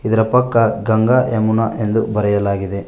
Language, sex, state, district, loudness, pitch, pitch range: Kannada, male, Karnataka, Koppal, -16 LUFS, 110 Hz, 105-115 Hz